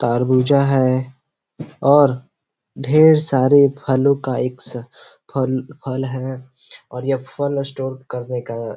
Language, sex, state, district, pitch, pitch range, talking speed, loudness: Hindi, male, Bihar, Gopalganj, 130 Hz, 125-140 Hz, 125 wpm, -18 LUFS